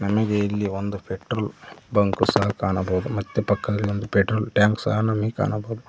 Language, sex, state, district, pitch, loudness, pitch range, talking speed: Kannada, male, Karnataka, Koppal, 105 Hz, -23 LUFS, 100-110 Hz, 155 wpm